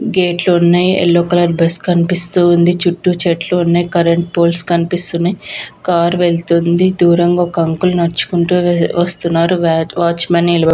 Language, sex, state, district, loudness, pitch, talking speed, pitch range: Telugu, female, Andhra Pradesh, Visakhapatnam, -13 LUFS, 175 Hz, 145 wpm, 170-175 Hz